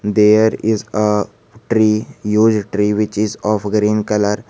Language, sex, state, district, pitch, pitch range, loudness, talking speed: English, male, Jharkhand, Garhwa, 105 Hz, 105-110 Hz, -16 LUFS, 145 wpm